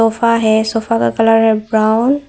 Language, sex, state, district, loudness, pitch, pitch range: Hindi, female, Arunachal Pradesh, Longding, -13 LUFS, 225 Hz, 220-230 Hz